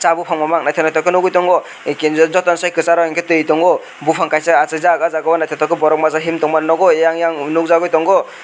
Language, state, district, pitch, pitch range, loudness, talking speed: Kokborok, Tripura, West Tripura, 165 Hz, 155-170 Hz, -14 LUFS, 205 wpm